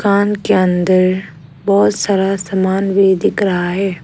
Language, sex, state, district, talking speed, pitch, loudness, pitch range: Hindi, female, Arunachal Pradesh, Lower Dibang Valley, 150 wpm, 190 Hz, -14 LUFS, 180-200 Hz